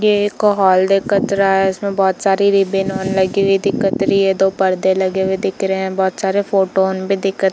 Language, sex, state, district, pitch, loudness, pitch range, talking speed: Hindi, female, Chhattisgarh, Bilaspur, 195 Hz, -16 LUFS, 190-195 Hz, 240 wpm